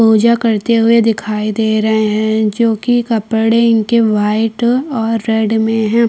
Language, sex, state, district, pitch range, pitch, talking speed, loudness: Hindi, female, Chhattisgarh, Kabirdham, 220-230 Hz, 225 Hz, 160 wpm, -13 LUFS